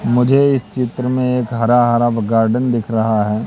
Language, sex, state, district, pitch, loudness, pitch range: Hindi, male, Madhya Pradesh, Katni, 120 Hz, -15 LUFS, 115-125 Hz